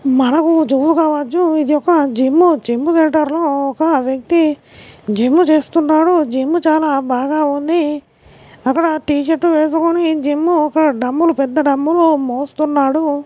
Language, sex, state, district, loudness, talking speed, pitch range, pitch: Telugu, female, Telangana, Karimnagar, -14 LUFS, 115 wpm, 275-325 Hz, 305 Hz